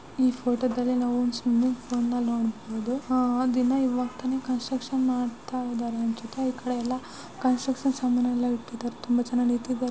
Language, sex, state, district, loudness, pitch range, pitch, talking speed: Kannada, female, Karnataka, Shimoga, -27 LUFS, 240-255 Hz, 245 Hz, 115 wpm